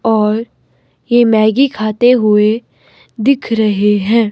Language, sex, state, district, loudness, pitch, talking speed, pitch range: Hindi, male, Himachal Pradesh, Shimla, -12 LUFS, 220 Hz, 110 wpm, 215-240 Hz